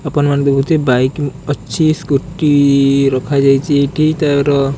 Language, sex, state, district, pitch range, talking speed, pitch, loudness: Odia, male, Odisha, Khordha, 135-150 Hz, 125 wpm, 140 Hz, -13 LUFS